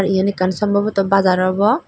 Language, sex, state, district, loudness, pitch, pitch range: Chakma, female, Tripura, Dhalai, -17 LUFS, 195 Hz, 185-205 Hz